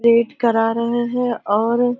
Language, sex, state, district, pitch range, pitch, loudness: Hindi, female, Uttar Pradesh, Deoria, 230-245 Hz, 235 Hz, -18 LUFS